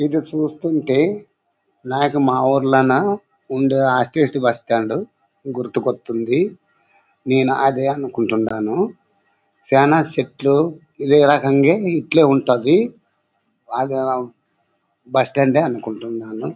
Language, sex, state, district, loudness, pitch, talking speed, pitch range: Telugu, male, Andhra Pradesh, Anantapur, -18 LUFS, 135 Hz, 80 wpm, 120-145 Hz